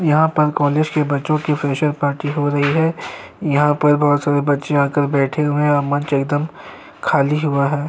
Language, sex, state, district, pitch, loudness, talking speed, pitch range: Hindi, male, Uttar Pradesh, Jyotiba Phule Nagar, 145 Hz, -17 LUFS, 195 wpm, 145-150 Hz